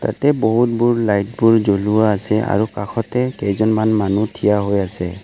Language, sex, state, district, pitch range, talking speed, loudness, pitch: Assamese, male, Assam, Kamrup Metropolitan, 100-115 Hz, 150 wpm, -17 LUFS, 110 Hz